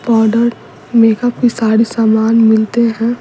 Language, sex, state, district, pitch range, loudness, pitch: Hindi, female, Bihar, Patna, 220-235 Hz, -12 LUFS, 230 Hz